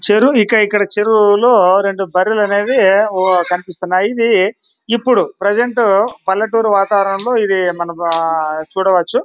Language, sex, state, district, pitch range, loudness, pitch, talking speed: Telugu, male, Andhra Pradesh, Anantapur, 185-220 Hz, -13 LUFS, 200 Hz, 95 wpm